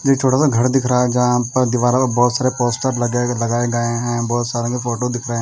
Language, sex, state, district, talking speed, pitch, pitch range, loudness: Hindi, male, Himachal Pradesh, Shimla, 265 wpm, 120 Hz, 120-125 Hz, -17 LUFS